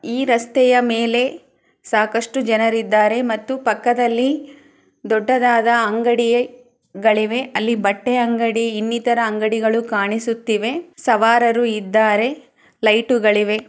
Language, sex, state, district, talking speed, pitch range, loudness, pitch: Kannada, female, Karnataka, Chamarajanagar, 85 wpm, 220-245 Hz, -17 LUFS, 230 Hz